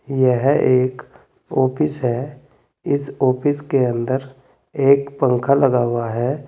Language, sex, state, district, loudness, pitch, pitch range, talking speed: Hindi, male, Uttar Pradesh, Saharanpur, -18 LUFS, 130 Hz, 125-140 Hz, 120 wpm